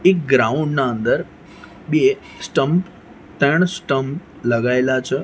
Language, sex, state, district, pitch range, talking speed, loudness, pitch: Gujarati, male, Gujarat, Gandhinagar, 130-175 Hz, 115 wpm, -19 LUFS, 140 Hz